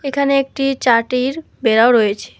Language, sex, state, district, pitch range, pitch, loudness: Bengali, female, West Bengal, Alipurduar, 230-275 Hz, 255 Hz, -15 LUFS